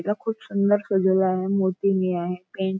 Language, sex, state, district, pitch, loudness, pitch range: Marathi, female, Maharashtra, Nagpur, 190 Hz, -23 LUFS, 185-200 Hz